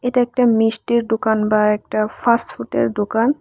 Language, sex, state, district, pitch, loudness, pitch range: Bengali, female, Tripura, West Tripura, 225 Hz, -18 LUFS, 210-235 Hz